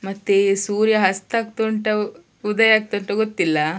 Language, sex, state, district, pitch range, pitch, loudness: Kannada, female, Karnataka, Dakshina Kannada, 195-220 Hz, 210 Hz, -19 LUFS